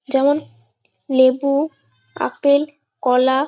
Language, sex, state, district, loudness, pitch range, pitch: Bengali, female, West Bengal, Malda, -18 LUFS, 250-285 Hz, 270 Hz